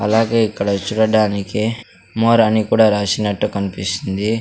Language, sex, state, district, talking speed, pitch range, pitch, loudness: Telugu, male, Andhra Pradesh, Sri Satya Sai, 110 wpm, 100-110 Hz, 110 Hz, -17 LUFS